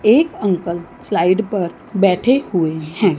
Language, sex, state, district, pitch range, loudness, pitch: Hindi, female, Chandigarh, Chandigarh, 170-215 Hz, -17 LUFS, 195 Hz